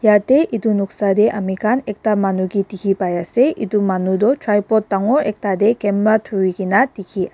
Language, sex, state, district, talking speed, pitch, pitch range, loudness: Nagamese, female, Nagaland, Dimapur, 190 wpm, 205 Hz, 195-220 Hz, -17 LUFS